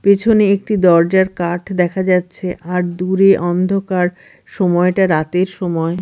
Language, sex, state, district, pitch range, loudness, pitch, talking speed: Bengali, female, Bihar, Katihar, 175-190 Hz, -15 LUFS, 185 Hz, 120 wpm